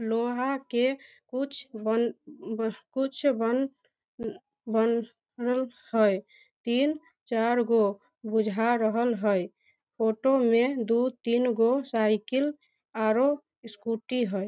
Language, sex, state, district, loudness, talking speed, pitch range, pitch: Maithili, female, Bihar, Samastipur, -27 LUFS, 90 wpm, 225-265 Hz, 240 Hz